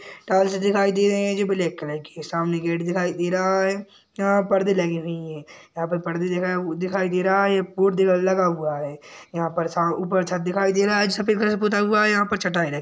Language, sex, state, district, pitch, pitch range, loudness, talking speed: Hindi, male, Chhattisgarh, Jashpur, 185 Hz, 170-200 Hz, -22 LUFS, 260 wpm